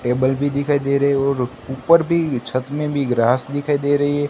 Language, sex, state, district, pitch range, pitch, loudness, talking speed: Hindi, male, Gujarat, Gandhinagar, 130-145 Hz, 140 Hz, -19 LUFS, 235 wpm